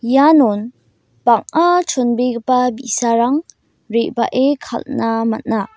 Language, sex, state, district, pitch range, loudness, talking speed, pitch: Garo, female, Meghalaya, West Garo Hills, 230-270 Hz, -16 LUFS, 75 wpm, 245 Hz